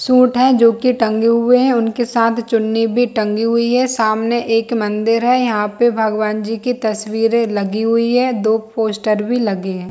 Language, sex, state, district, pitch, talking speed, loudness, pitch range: Hindi, female, Chhattisgarh, Bilaspur, 230 Hz, 205 wpm, -15 LUFS, 220-240 Hz